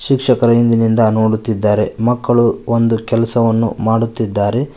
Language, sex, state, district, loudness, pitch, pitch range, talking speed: Kannada, male, Karnataka, Koppal, -14 LUFS, 115 Hz, 110-120 Hz, 90 wpm